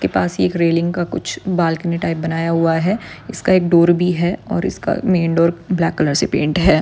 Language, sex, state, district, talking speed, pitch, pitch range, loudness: Hindi, male, Maharashtra, Nagpur, 220 wpm, 170 Hz, 165-175 Hz, -17 LUFS